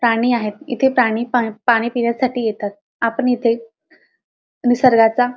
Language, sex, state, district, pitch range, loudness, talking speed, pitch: Marathi, female, Maharashtra, Dhule, 225-250 Hz, -17 LUFS, 125 wpm, 240 Hz